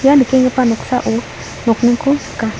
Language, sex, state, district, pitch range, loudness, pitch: Garo, female, Meghalaya, South Garo Hills, 230-265 Hz, -15 LUFS, 250 Hz